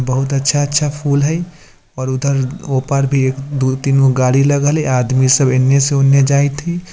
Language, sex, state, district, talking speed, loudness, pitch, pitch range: Bajjika, male, Bihar, Vaishali, 200 wpm, -14 LUFS, 140 Hz, 130-145 Hz